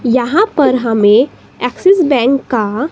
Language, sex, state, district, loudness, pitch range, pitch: Hindi, female, Himachal Pradesh, Shimla, -12 LUFS, 235-290 Hz, 255 Hz